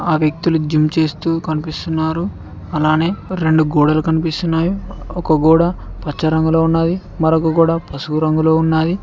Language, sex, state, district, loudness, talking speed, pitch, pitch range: Telugu, male, Telangana, Mahabubabad, -16 LUFS, 125 wpm, 160 Hz, 155-165 Hz